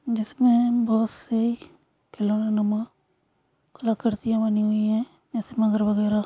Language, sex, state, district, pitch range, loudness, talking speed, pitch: Hindi, female, Maharashtra, Nagpur, 215-235 Hz, -24 LUFS, 85 wpm, 225 Hz